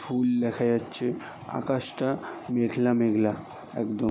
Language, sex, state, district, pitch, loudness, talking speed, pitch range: Bengali, male, West Bengal, Jalpaiguri, 115 Hz, -27 LUFS, 100 wpm, 110-120 Hz